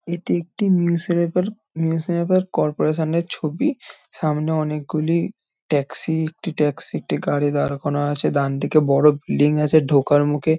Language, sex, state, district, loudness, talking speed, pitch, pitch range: Bengali, male, West Bengal, Jhargram, -20 LUFS, 130 wpm, 160 Hz, 150-170 Hz